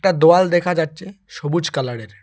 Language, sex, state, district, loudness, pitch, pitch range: Bengali, male, West Bengal, Alipurduar, -18 LUFS, 170 Hz, 145-180 Hz